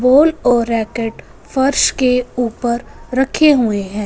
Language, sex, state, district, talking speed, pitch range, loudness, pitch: Hindi, female, Punjab, Fazilka, 135 wpm, 230-265 Hz, -15 LUFS, 245 Hz